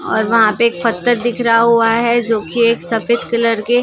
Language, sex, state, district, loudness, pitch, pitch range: Hindi, female, Maharashtra, Gondia, -14 LUFS, 230 Hz, 225-235 Hz